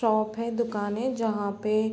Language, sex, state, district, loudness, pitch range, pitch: Hindi, female, Uttar Pradesh, Varanasi, -28 LUFS, 215-230 Hz, 220 Hz